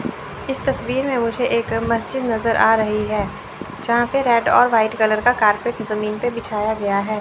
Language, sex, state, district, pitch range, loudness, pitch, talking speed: Hindi, female, Chandigarh, Chandigarh, 215-240 Hz, -19 LUFS, 225 Hz, 190 wpm